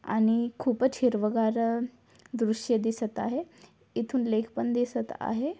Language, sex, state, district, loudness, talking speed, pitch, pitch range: Marathi, female, Maharashtra, Aurangabad, -29 LUFS, 130 wpm, 235 Hz, 225-250 Hz